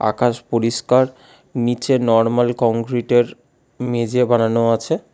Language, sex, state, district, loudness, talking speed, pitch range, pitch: Bengali, male, West Bengal, Alipurduar, -18 LUFS, 95 wpm, 115-125 Hz, 120 Hz